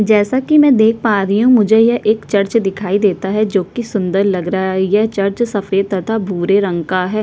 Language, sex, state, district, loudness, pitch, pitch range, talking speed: Hindi, female, Chhattisgarh, Sukma, -14 LUFS, 205 Hz, 195-220 Hz, 240 wpm